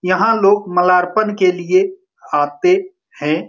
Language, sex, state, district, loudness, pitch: Hindi, male, Bihar, Saran, -15 LUFS, 200 Hz